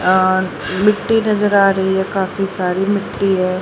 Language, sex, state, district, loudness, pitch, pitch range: Hindi, female, Haryana, Rohtak, -16 LUFS, 190 Hz, 185-200 Hz